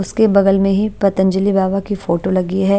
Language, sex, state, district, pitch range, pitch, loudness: Hindi, female, Punjab, Pathankot, 190-200 Hz, 195 Hz, -15 LUFS